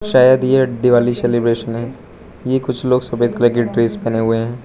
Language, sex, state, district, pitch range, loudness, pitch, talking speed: Hindi, male, Arunachal Pradesh, Lower Dibang Valley, 115-125 Hz, -16 LUFS, 120 Hz, 195 wpm